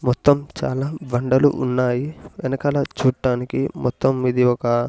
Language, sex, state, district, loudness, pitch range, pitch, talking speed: Telugu, male, Andhra Pradesh, Sri Satya Sai, -20 LUFS, 125-140 Hz, 130 Hz, 110 wpm